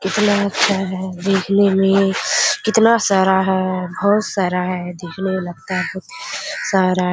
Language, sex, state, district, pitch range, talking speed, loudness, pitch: Hindi, female, Bihar, Kishanganj, 185-200 Hz, 150 wpm, -17 LUFS, 190 Hz